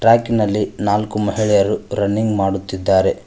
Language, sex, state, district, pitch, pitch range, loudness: Kannada, male, Karnataka, Koppal, 105 Hz, 100-110 Hz, -17 LUFS